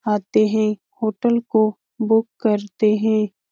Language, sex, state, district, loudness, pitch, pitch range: Hindi, female, Bihar, Lakhisarai, -20 LUFS, 215 Hz, 210-220 Hz